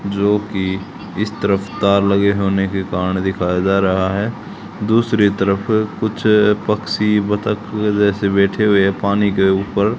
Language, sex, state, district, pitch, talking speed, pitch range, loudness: Hindi, male, Haryana, Charkhi Dadri, 100 Hz, 150 wpm, 95-105 Hz, -17 LUFS